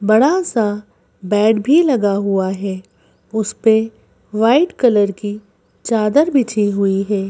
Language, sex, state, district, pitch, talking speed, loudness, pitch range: Hindi, female, Madhya Pradesh, Bhopal, 215 Hz, 130 wpm, -16 LUFS, 200-235 Hz